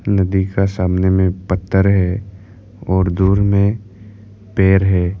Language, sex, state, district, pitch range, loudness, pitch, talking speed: Hindi, male, Arunachal Pradesh, Lower Dibang Valley, 95-100 Hz, -16 LUFS, 95 Hz, 125 wpm